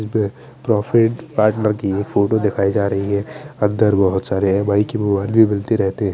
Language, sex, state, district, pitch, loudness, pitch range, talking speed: Hindi, male, Chandigarh, Chandigarh, 105 Hz, -18 LUFS, 100-110 Hz, 195 wpm